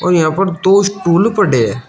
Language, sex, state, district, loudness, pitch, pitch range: Hindi, male, Uttar Pradesh, Shamli, -13 LUFS, 180 Hz, 170-195 Hz